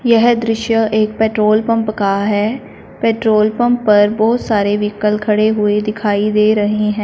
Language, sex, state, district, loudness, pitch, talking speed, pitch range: Hindi, female, Punjab, Fazilka, -14 LUFS, 215 Hz, 160 wpm, 210-225 Hz